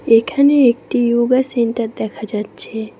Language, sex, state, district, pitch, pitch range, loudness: Bengali, female, West Bengal, Cooch Behar, 235 Hz, 220-250 Hz, -16 LUFS